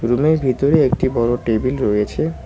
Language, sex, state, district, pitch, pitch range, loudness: Bengali, male, West Bengal, Cooch Behar, 130 Hz, 115-150 Hz, -17 LUFS